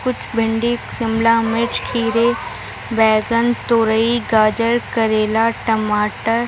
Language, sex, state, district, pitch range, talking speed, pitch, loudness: Hindi, female, Bihar, Gaya, 220-235 Hz, 95 wpm, 230 Hz, -17 LUFS